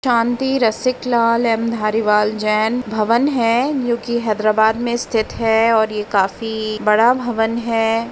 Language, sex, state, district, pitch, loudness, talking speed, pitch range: Hindi, female, Uttar Pradesh, Etah, 225 Hz, -17 LUFS, 150 wpm, 215-235 Hz